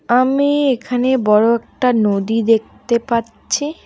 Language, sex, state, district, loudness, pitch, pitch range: Bengali, female, West Bengal, Alipurduar, -16 LUFS, 240 Hz, 225-260 Hz